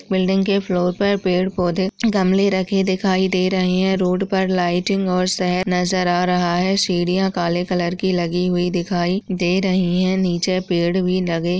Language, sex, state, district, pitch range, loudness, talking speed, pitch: Hindi, female, Uttar Pradesh, Deoria, 180-190 Hz, -19 LUFS, 185 wpm, 185 Hz